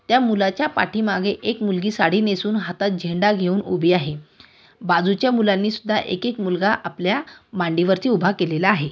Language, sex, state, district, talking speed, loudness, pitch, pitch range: Marathi, female, Maharashtra, Aurangabad, 155 wpm, -20 LUFS, 200 Hz, 180-215 Hz